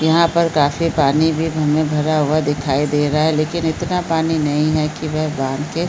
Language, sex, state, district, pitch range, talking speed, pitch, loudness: Hindi, female, Chhattisgarh, Balrampur, 150-160 Hz, 225 wpm, 155 Hz, -17 LUFS